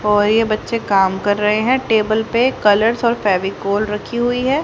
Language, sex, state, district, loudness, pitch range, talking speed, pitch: Hindi, female, Haryana, Charkhi Dadri, -16 LUFS, 205-235 Hz, 195 wpm, 215 Hz